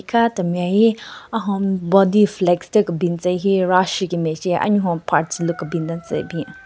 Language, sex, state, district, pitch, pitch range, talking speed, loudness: Rengma, female, Nagaland, Kohima, 185 Hz, 175-205 Hz, 180 wpm, -19 LUFS